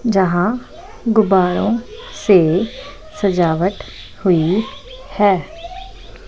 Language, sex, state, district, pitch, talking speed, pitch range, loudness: Hindi, female, Punjab, Pathankot, 215 Hz, 55 wpm, 185-285 Hz, -17 LUFS